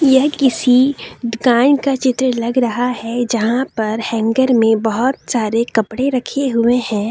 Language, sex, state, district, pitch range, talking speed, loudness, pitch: Hindi, female, Jharkhand, Deoghar, 230-260 Hz, 150 wpm, -16 LUFS, 245 Hz